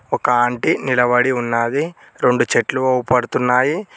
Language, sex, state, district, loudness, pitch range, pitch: Telugu, male, Telangana, Mahabubabad, -17 LUFS, 120-130 Hz, 125 Hz